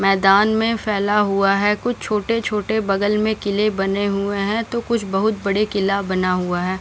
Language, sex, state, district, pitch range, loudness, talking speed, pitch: Hindi, female, Maharashtra, Chandrapur, 195-215 Hz, -19 LUFS, 195 wpm, 205 Hz